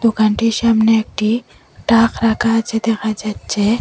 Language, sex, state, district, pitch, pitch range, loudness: Bengali, female, Assam, Hailakandi, 225 Hz, 215-230 Hz, -16 LUFS